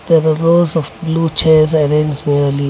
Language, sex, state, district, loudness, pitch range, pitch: English, male, Karnataka, Bangalore, -13 LUFS, 150-165 Hz, 155 Hz